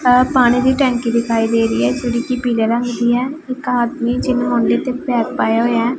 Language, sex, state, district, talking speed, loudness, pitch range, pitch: Punjabi, female, Punjab, Pathankot, 230 wpm, -16 LUFS, 235-255 Hz, 245 Hz